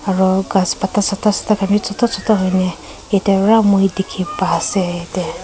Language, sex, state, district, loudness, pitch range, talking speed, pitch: Nagamese, female, Nagaland, Kohima, -16 LUFS, 190-205 Hz, 155 wpm, 195 Hz